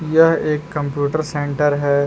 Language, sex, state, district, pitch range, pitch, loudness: Hindi, male, Jharkhand, Palamu, 145-155 Hz, 150 Hz, -18 LUFS